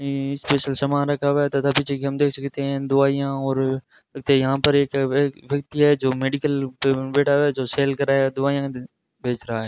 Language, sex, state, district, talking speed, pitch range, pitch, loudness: Hindi, male, Rajasthan, Bikaner, 255 wpm, 135-140 Hz, 140 Hz, -21 LUFS